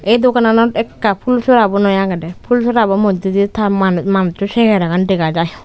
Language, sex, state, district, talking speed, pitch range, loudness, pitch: Chakma, female, Tripura, Unakoti, 180 wpm, 190-230 Hz, -14 LUFS, 200 Hz